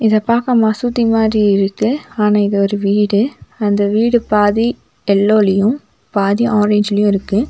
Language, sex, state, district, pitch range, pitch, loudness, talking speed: Tamil, female, Tamil Nadu, Nilgiris, 205-230 Hz, 210 Hz, -14 LUFS, 120 wpm